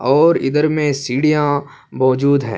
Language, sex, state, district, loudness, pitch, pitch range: Urdu, male, Uttar Pradesh, Budaun, -16 LUFS, 140 Hz, 130-150 Hz